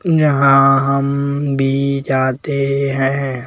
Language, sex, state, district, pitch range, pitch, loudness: Hindi, male, Madhya Pradesh, Bhopal, 135-140 Hz, 140 Hz, -15 LUFS